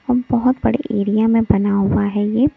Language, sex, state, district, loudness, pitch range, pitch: Hindi, female, Delhi, New Delhi, -17 LUFS, 205-250 Hz, 225 Hz